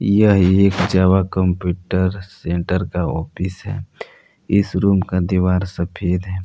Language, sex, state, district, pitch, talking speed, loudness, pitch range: Hindi, male, Jharkhand, Palamu, 95 Hz, 130 wpm, -18 LUFS, 90-95 Hz